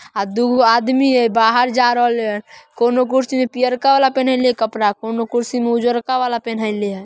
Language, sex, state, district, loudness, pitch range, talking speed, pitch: Magahi, female, Bihar, Samastipur, -16 LUFS, 225-255 Hz, 185 wpm, 240 Hz